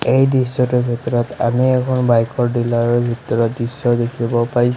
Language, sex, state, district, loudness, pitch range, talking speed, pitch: Assamese, male, Assam, Sonitpur, -17 LUFS, 120-125 Hz, 140 wpm, 120 Hz